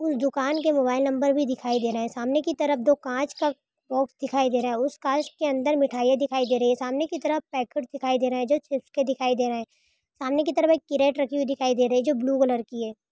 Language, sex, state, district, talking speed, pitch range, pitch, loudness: Hindi, female, Uttar Pradesh, Budaun, 270 wpm, 255-290 Hz, 270 Hz, -25 LUFS